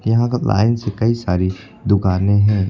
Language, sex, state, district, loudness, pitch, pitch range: Hindi, male, Uttar Pradesh, Lucknow, -17 LUFS, 105 Hz, 95-115 Hz